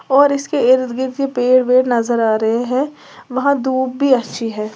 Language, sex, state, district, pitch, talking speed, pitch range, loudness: Hindi, female, Uttar Pradesh, Lalitpur, 255 Hz, 190 wpm, 235-270 Hz, -16 LUFS